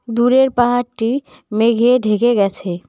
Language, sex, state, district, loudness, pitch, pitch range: Bengali, female, West Bengal, Cooch Behar, -15 LUFS, 240 Hz, 220-250 Hz